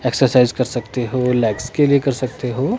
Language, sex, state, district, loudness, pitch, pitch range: Hindi, male, Himachal Pradesh, Shimla, -18 LUFS, 125 Hz, 125-135 Hz